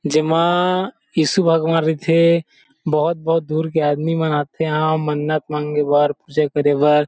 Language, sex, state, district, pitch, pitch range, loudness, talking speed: Chhattisgarhi, male, Chhattisgarh, Rajnandgaon, 155 Hz, 150-165 Hz, -18 LUFS, 150 wpm